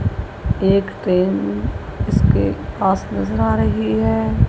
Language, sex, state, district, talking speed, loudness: Hindi, female, Punjab, Kapurthala, 105 wpm, -19 LUFS